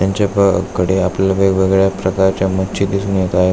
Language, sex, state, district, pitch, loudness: Marathi, male, Maharashtra, Aurangabad, 95 Hz, -15 LUFS